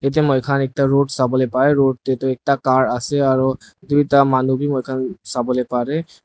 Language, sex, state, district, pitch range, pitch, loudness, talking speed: Nagamese, male, Nagaland, Dimapur, 130-140 Hz, 135 Hz, -18 LUFS, 175 wpm